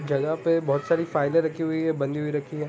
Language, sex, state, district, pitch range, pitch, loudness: Hindi, male, Jharkhand, Sahebganj, 145-165 Hz, 155 Hz, -25 LUFS